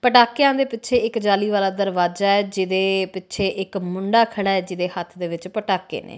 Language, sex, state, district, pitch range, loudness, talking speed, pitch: Punjabi, female, Punjab, Kapurthala, 185-220 Hz, -21 LUFS, 195 wpm, 195 Hz